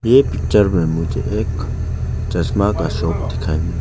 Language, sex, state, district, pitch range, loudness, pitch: Hindi, male, Arunachal Pradesh, Lower Dibang Valley, 80-105 Hz, -18 LUFS, 90 Hz